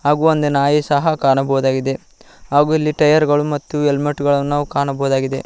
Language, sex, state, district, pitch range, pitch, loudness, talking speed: Kannada, male, Karnataka, Koppal, 135-150 Hz, 145 Hz, -16 LUFS, 155 wpm